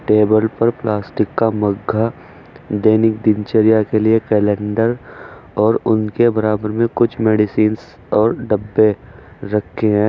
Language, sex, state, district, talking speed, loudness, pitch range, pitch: Hindi, male, Uttar Pradesh, Saharanpur, 120 wpm, -16 LUFS, 105-115 Hz, 110 Hz